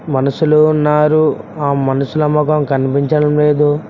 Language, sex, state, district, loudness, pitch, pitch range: Telugu, male, Telangana, Mahabubabad, -13 LUFS, 150 Hz, 140-150 Hz